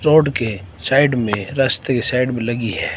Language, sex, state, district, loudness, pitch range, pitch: Hindi, male, Himachal Pradesh, Shimla, -18 LUFS, 110-135 Hz, 120 Hz